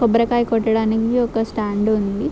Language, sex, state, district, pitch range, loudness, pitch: Telugu, female, Andhra Pradesh, Srikakulam, 215-235 Hz, -19 LUFS, 225 Hz